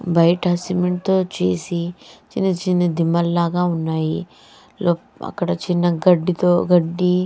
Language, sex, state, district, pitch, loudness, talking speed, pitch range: Telugu, female, Andhra Pradesh, Chittoor, 175 Hz, -19 LUFS, 115 wpm, 170-180 Hz